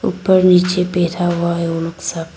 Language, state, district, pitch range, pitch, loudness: Hindi, Arunachal Pradesh, Lower Dibang Valley, 170-180 Hz, 175 Hz, -16 LUFS